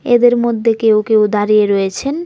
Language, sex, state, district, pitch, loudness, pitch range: Bengali, female, Tripura, West Tripura, 220 Hz, -13 LUFS, 210-240 Hz